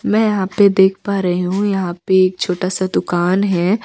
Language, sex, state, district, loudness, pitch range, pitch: Hindi, female, Chhattisgarh, Raipur, -16 LUFS, 180-200 Hz, 190 Hz